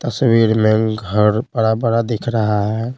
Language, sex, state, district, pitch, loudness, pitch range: Hindi, male, Bihar, Patna, 110 Hz, -16 LUFS, 110-115 Hz